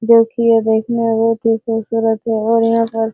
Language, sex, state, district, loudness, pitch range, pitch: Hindi, female, Bihar, Araria, -15 LUFS, 225-230 Hz, 225 Hz